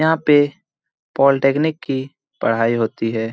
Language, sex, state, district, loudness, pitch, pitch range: Hindi, male, Bihar, Jamui, -18 LUFS, 140 Hz, 115-150 Hz